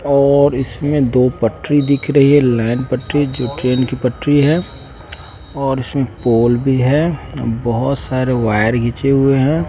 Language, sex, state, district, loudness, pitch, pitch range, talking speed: Hindi, male, Bihar, West Champaran, -15 LUFS, 130 Hz, 125-140 Hz, 155 wpm